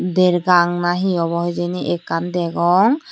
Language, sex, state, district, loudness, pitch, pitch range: Chakma, female, Tripura, Unakoti, -18 LUFS, 175 Hz, 175-180 Hz